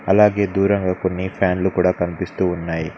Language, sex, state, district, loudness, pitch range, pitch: Telugu, male, Telangana, Mahabubabad, -19 LUFS, 90-95 Hz, 90 Hz